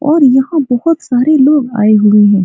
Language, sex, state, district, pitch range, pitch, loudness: Hindi, female, Bihar, Supaul, 215-300 Hz, 265 Hz, -10 LUFS